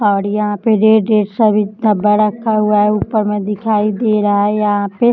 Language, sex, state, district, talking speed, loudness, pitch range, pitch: Hindi, female, Uttar Pradesh, Jyotiba Phule Nagar, 235 wpm, -14 LUFS, 205-220 Hz, 210 Hz